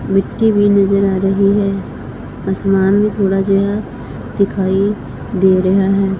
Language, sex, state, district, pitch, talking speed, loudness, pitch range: Punjabi, female, Punjab, Fazilka, 195 Hz, 135 wpm, -15 LUFS, 195-200 Hz